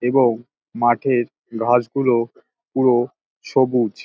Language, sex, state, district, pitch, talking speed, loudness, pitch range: Bengali, male, West Bengal, Dakshin Dinajpur, 120 Hz, 90 wpm, -19 LUFS, 120-130 Hz